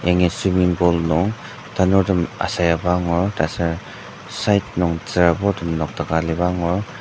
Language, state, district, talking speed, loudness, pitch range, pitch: Ao, Nagaland, Dimapur, 130 wpm, -20 LUFS, 85-95 Hz, 90 Hz